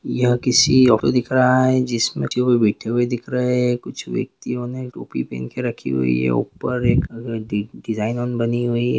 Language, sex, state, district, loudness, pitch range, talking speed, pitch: Hindi, male, Bihar, Gaya, -20 LUFS, 115-125 Hz, 195 wpm, 120 Hz